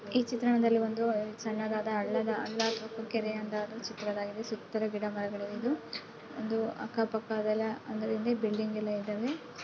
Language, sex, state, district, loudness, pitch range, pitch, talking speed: Kannada, female, Karnataka, Bellary, -33 LUFS, 215-225 Hz, 220 Hz, 135 wpm